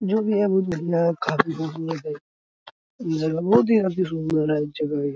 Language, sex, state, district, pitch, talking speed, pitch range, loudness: Hindi, male, Bihar, Araria, 165 Hz, 185 wpm, 150-190 Hz, -23 LUFS